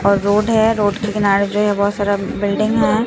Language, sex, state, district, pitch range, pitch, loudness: Hindi, female, Bihar, Katihar, 200-215 Hz, 205 Hz, -16 LUFS